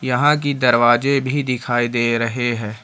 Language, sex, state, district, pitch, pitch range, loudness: Hindi, male, Jharkhand, Ranchi, 120 Hz, 120-140 Hz, -17 LUFS